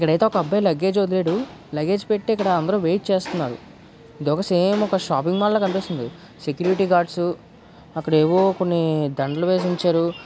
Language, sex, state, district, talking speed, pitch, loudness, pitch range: Telugu, male, Andhra Pradesh, Guntur, 165 wpm, 180 Hz, -21 LUFS, 160-195 Hz